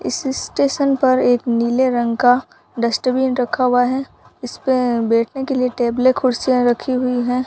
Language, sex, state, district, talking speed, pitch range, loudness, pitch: Hindi, female, Rajasthan, Bikaner, 160 wpm, 245-260 Hz, -17 LUFS, 250 Hz